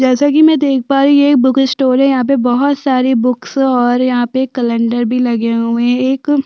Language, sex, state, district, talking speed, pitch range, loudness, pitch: Hindi, female, Chhattisgarh, Sukma, 230 wpm, 245-275 Hz, -12 LUFS, 260 Hz